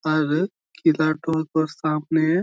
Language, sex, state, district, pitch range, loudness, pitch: Bengali, male, West Bengal, Malda, 155-160 Hz, -22 LUFS, 160 Hz